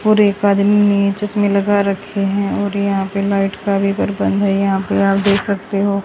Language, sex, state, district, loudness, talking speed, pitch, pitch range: Hindi, female, Haryana, Rohtak, -16 LUFS, 220 wpm, 200 Hz, 195-200 Hz